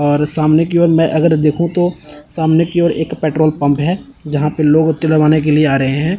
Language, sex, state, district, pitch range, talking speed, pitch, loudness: Hindi, male, Chandigarh, Chandigarh, 150-165 Hz, 225 wpm, 155 Hz, -13 LUFS